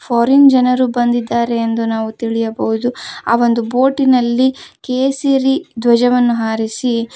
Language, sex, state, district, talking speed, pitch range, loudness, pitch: Kannada, female, Karnataka, Koppal, 100 wpm, 230-260 Hz, -14 LUFS, 240 Hz